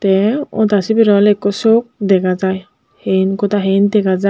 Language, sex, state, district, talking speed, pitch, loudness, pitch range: Chakma, male, Tripura, Unakoti, 180 wpm, 200 Hz, -14 LUFS, 190-210 Hz